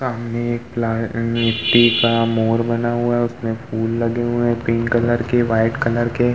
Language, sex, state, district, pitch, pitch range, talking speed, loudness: Hindi, male, Uttar Pradesh, Muzaffarnagar, 115 Hz, 115-120 Hz, 190 wpm, -18 LUFS